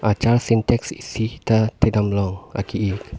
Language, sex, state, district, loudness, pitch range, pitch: Karbi, male, Assam, Karbi Anglong, -21 LUFS, 100-115 Hz, 110 Hz